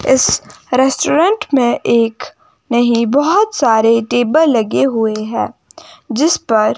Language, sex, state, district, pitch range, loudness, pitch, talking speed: Hindi, female, Himachal Pradesh, Shimla, 230-310 Hz, -14 LUFS, 245 Hz, 115 wpm